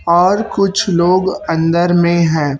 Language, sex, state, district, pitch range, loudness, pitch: Hindi, male, Chhattisgarh, Raipur, 165-190 Hz, -13 LUFS, 175 Hz